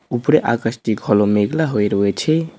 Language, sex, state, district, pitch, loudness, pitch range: Bengali, male, West Bengal, Cooch Behar, 115 Hz, -17 LUFS, 105-155 Hz